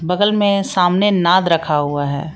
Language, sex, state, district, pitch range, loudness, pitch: Hindi, female, Jharkhand, Palamu, 155-200 Hz, -15 LUFS, 180 Hz